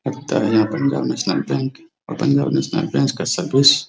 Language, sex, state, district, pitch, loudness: Hindi, male, Bihar, Araria, 130 Hz, -19 LUFS